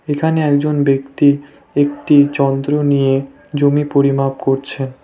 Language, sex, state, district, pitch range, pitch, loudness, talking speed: Bengali, male, West Bengal, Cooch Behar, 135-145 Hz, 145 Hz, -15 LUFS, 105 wpm